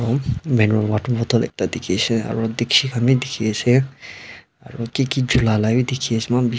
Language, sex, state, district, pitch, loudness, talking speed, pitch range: Nagamese, male, Nagaland, Dimapur, 120 Hz, -19 LUFS, 135 wpm, 115-130 Hz